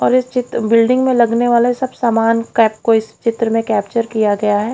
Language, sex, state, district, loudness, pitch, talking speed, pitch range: Hindi, female, Haryana, Jhajjar, -15 LUFS, 230 Hz, 230 wpm, 220-245 Hz